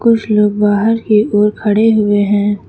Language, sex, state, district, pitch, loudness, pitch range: Hindi, female, Uttar Pradesh, Lucknow, 210 Hz, -12 LUFS, 205-220 Hz